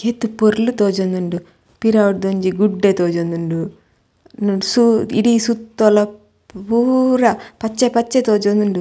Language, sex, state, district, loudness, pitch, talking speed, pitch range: Tulu, female, Karnataka, Dakshina Kannada, -16 LUFS, 210 Hz, 95 wpm, 195-235 Hz